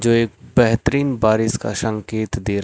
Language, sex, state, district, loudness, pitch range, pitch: Hindi, male, Rajasthan, Bikaner, -19 LUFS, 110-120 Hz, 110 Hz